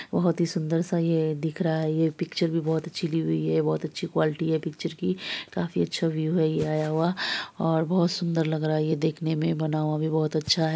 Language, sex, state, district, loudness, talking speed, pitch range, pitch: Hindi, female, Bihar, Saharsa, -26 LUFS, 245 wpm, 155-165 Hz, 160 Hz